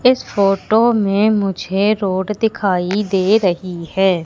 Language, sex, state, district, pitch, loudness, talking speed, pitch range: Hindi, female, Madhya Pradesh, Katni, 195 Hz, -16 LUFS, 125 wpm, 190-215 Hz